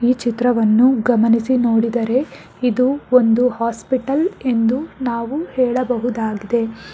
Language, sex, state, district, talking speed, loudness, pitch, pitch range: Kannada, female, Karnataka, Bangalore, 85 wpm, -17 LUFS, 245 Hz, 230-255 Hz